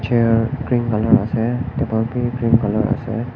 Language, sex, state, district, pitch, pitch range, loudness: Nagamese, male, Nagaland, Kohima, 115 Hz, 115-125 Hz, -18 LUFS